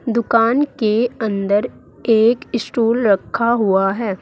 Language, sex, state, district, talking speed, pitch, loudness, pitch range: Hindi, female, Uttar Pradesh, Saharanpur, 115 wpm, 230 Hz, -17 LUFS, 210-235 Hz